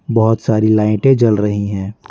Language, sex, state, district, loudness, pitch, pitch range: Hindi, male, Bihar, Patna, -14 LUFS, 110 Hz, 105-115 Hz